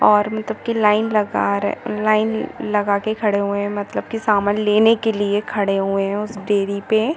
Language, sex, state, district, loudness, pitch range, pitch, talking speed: Hindi, female, Chhattisgarh, Bastar, -19 LUFS, 200-215 Hz, 210 Hz, 190 wpm